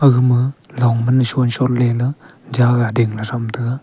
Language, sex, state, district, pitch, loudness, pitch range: Wancho, male, Arunachal Pradesh, Longding, 125 Hz, -17 LUFS, 120-130 Hz